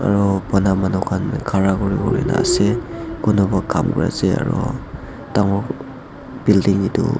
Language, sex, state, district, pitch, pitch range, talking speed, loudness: Nagamese, male, Nagaland, Dimapur, 100 Hz, 95-125 Hz, 135 wpm, -18 LUFS